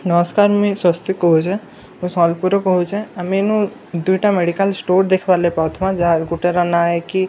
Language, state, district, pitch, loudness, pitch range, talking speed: Sambalpuri, Odisha, Sambalpur, 185 Hz, -17 LUFS, 170-195 Hz, 190 wpm